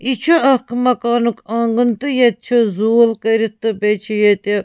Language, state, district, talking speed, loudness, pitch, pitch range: Kashmiri, Punjab, Kapurthala, 205 wpm, -15 LUFS, 230 Hz, 215-245 Hz